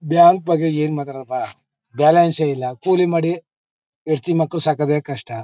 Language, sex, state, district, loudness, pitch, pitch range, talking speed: Kannada, male, Karnataka, Mysore, -18 LUFS, 155 Hz, 140-170 Hz, 145 wpm